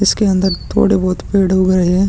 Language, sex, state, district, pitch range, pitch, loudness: Hindi, male, Chhattisgarh, Sukma, 185-195 Hz, 190 Hz, -14 LUFS